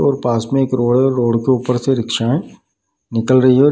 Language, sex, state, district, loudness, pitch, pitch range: Hindi, male, Bihar, Darbhanga, -16 LUFS, 125 Hz, 120-135 Hz